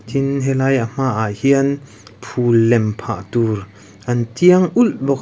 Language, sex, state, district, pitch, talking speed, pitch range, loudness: Mizo, male, Mizoram, Aizawl, 125 Hz, 160 wpm, 110-140 Hz, -17 LUFS